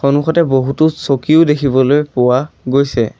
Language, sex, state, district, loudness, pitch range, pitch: Assamese, male, Assam, Sonitpur, -13 LUFS, 130-150 Hz, 140 Hz